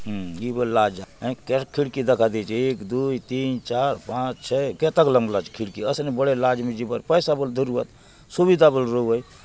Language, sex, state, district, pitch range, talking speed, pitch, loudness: Halbi, male, Chhattisgarh, Bastar, 115-135 Hz, 190 wpm, 125 Hz, -23 LUFS